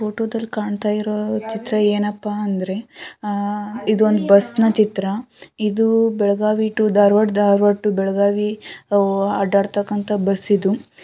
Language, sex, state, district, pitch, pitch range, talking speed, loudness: Kannada, female, Karnataka, Shimoga, 210 Hz, 200-215 Hz, 110 wpm, -18 LUFS